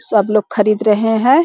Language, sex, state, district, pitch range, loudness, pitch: Hindi, female, Bihar, Jahanabad, 210-225 Hz, -14 LUFS, 215 Hz